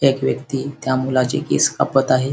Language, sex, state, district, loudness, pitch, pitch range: Marathi, male, Maharashtra, Sindhudurg, -19 LUFS, 130 Hz, 130-135 Hz